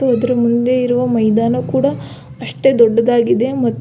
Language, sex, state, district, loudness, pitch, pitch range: Kannada, female, Karnataka, Belgaum, -14 LUFS, 235 Hz, 220-250 Hz